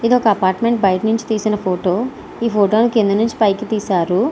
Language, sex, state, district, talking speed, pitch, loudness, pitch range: Telugu, female, Andhra Pradesh, Srikakulam, 195 wpm, 215 Hz, -17 LUFS, 195-230 Hz